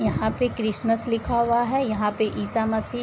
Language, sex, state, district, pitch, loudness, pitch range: Hindi, female, Uttar Pradesh, Varanasi, 225 Hz, -23 LUFS, 220-240 Hz